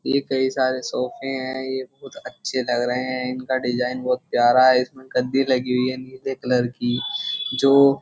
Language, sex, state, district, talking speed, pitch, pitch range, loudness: Hindi, male, Uttar Pradesh, Jyotiba Phule Nagar, 195 wpm, 130 Hz, 125-130 Hz, -22 LUFS